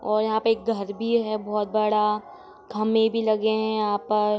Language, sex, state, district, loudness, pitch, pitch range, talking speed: Hindi, female, Jharkhand, Sahebganj, -24 LUFS, 215 Hz, 210-220 Hz, 205 wpm